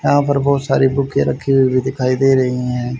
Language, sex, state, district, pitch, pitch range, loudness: Hindi, male, Haryana, Charkhi Dadri, 135 Hz, 130-140 Hz, -16 LUFS